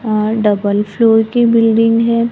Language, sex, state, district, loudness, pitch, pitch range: Hindi, female, Maharashtra, Gondia, -12 LUFS, 225 Hz, 215-230 Hz